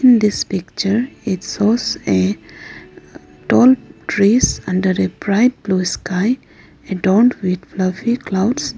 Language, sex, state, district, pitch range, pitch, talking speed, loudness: English, female, Arunachal Pradesh, Lower Dibang Valley, 185-235 Hz, 200 Hz, 115 wpm, -17 LUFS